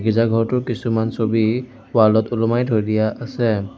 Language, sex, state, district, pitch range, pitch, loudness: Assamese, male, Assam, Sonitpur, 110-120 Hz, 115 Hz, -19 LUFS